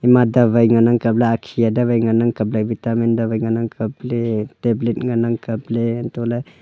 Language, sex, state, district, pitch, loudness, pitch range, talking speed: Wancho, male, Arunachal Pradesh, Longding, 115 Hz, -18 LUFS, 115-120 Hz, 180 wpm